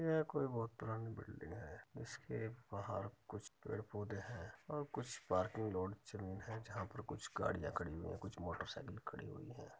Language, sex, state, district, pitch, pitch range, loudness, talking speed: Hindi, male, Uttar Pradesh, Muzaffarnagar, 110 Hz, 100-120 Hz, -46 LUFS, 210 wpm